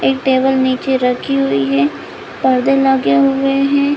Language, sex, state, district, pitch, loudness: Hindi, female, Chhattisgarh, Bilaspur, 260 Hz, -14 LUFS